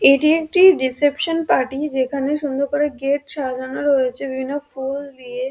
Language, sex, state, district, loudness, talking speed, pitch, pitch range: Bengali, female, West Bengal, Dakshin Dinajpur, -19 LUFS, 140 wpm, 280 Hz, 265-295 Hz